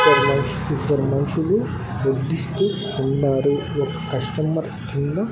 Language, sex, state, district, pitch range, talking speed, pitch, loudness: Telugu, male, Andhra Pradesh, Annamaya, 135-160 Hz, 80 wpm, 140 Hz, -22 LUFS